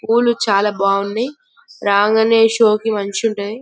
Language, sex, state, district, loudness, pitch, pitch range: Telugu, male, Telangana, Karimnagar, -16 LUFS, 220 Hz, 200-230 Hz